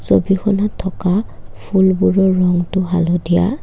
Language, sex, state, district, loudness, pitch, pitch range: Assamese, female, Assam, Kamrup Metropolitan, -16 LUFS, 190 Hz, 175-195 Hz